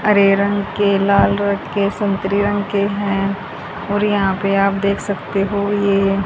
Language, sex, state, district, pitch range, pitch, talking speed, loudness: Hindi, female, Haryana, Rohtak, 195-205 Hz, 200 Hz, 170 wpm, -17 LUFS